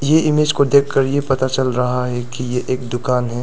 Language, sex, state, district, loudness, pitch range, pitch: Hindi, male, Arunachal Pradesh, Lower Dibang Valley, -17 LUFS, 125-140 Hz, 130 Hz